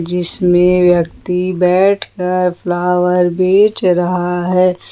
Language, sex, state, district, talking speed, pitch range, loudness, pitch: Hindi, female, Jharkhand, Ranchi, 85 wpm, 180-185 Hz, -13 LUFS, 180 Hz